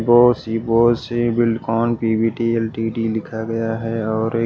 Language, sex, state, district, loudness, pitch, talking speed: Hindi, male, Odisha, Malkangiri, -19 LUFS, 115 Hz, 160 wpm